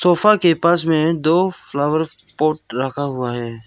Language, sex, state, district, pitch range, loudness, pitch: Hindi, male, Arunachal Pradesh, Lower Dibang Valley, 140-170 Hz, -18 LUFS, 155 Hz